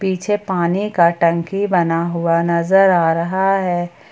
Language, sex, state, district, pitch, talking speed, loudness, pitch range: Hindi, female, Jharkhand, Ranchi, 175 Hz, 145 wpm, -16 LUFS, 170-190 Hz